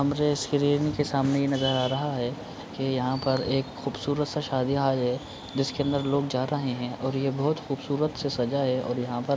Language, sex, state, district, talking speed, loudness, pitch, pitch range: Hindi, male, Bihar, Supaul, 220 wpm, -27 LUFS, 135 Hz, 130-145 Hz